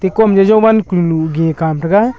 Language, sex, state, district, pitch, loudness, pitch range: Wancho, male, Arunachal Pradesh, Longding, 190 Hz, -12 LUFS, 165-215 Hz